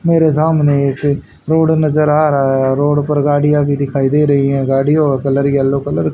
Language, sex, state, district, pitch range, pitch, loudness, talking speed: Hindi, male, Haryana, Rohtak, 135-150 Hz, 145 Hz, -13 LUFS, 205 wpm